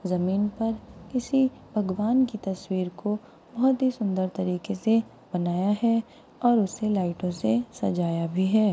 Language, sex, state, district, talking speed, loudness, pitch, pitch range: Hindi, female, Rajasthan, Churu, 145 wpm, -26 LUFS, 200 Hz, 185-225 Hz